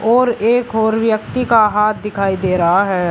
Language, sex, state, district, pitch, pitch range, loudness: Hindi, male, Uttar Pradesh, Shamli, 215 Hz, 195-230 Hz, -15 LUFS